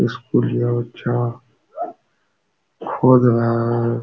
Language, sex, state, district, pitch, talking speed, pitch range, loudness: Hindi, male, Uttar Pradesh, Jalaun, 115 Hz, 75 wpm, 90-125 Hz, -18 LUFS